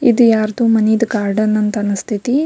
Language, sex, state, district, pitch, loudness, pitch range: Kannada, female, Karnataka, Belgaum, 220 Hz, -15 LUFS, 210-235 Hz